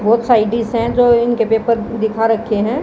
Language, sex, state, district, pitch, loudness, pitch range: Hindi, female, Haryana, Jhajjar, 230 Hz, -15 LUFS, 225-235 Hz